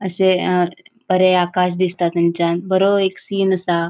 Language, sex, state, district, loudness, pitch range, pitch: Konkani, female, Goa, North and South Goa, -17 LUFS, 175-190 Hz, 185 Hz